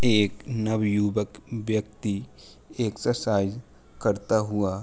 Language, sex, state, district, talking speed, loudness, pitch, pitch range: Hindi, male, Uttar Pradesh, Jalaun, 85 wpm, -27 LUFS, 105 Hz, 100-110 Hz